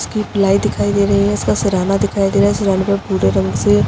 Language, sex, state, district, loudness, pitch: Hindi, female, Uttar Pradesh, Jalaun, -15 LUFS, 180 Hz